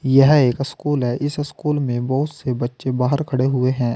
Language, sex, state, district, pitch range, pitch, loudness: Hindi, male, Uttar Pradesh, Saharanpur, 125-145 Hz, 135 Hz, -19 LUFS